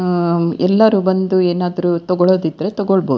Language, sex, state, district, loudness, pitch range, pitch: Kannada, female, Karnataka, Dakshina Kannada, -15 LUFS, 175-190 Hz, 180 Hz